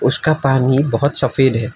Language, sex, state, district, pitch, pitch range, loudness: Hindi, male, Assam, Kamrup Metropolitan, 135 Hz, 130-140 Hz, -15 LUFS